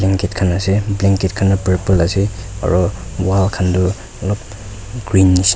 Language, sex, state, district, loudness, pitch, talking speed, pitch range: Nagamese, male, Nagaland, Kohima, -16 LUFS, 95 Hz, 170 wpm, 95-100 Hz